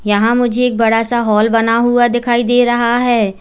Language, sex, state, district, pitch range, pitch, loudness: Hindi, female, Uttar Pradesh, Lalitpur, 225-240 Hz, 235 Hz, -13 LUFS